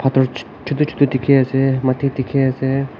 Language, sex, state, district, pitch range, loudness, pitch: Nagamese, male, Nagaland, Kohima, 130-140 Hz, -17 LUFS, 135 Hz